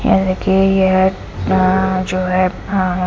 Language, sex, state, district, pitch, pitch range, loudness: Hindi, female, Punjab, Fazilka, 185 Hz, 185-190 Hz, -15 LUFS